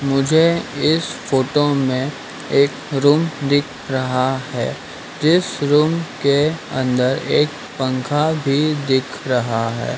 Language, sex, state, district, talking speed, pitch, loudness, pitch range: Hindi, male, Madhya Pradesh, Dhar, 115 wpm, 140 Hz, -18 LUFS, 130-150 Hz